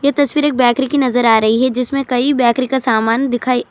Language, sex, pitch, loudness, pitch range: Urdu, female, 255 Hz, -14 LUFS, 240-275 Hz